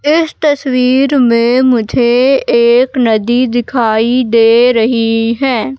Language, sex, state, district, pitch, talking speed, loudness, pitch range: Hindi, female, Madhya Pradesh, Katni, 245 Hz, 105 wpm, -10 LUFS, 230-260 Hz